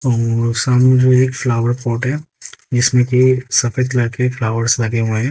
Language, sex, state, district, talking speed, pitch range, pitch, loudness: Hindi, female, Haryana, Jhajjar, 180 wpm, 115-130 Hz, 125 Hz, -15 LUFS